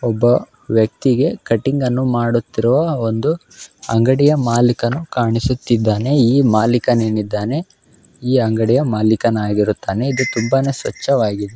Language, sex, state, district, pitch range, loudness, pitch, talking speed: Kannada, male, Karnataka, Belgaum, 110-130 Hz, -16 LUFS, 120 Hz, 95 wpm